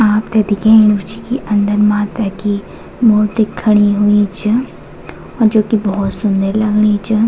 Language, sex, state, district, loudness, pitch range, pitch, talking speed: Garhwali, female, Uttarakhand, Tehri Garhwal, -13 LUFS, 205-220 Hz, 210 Hz, 150 wpm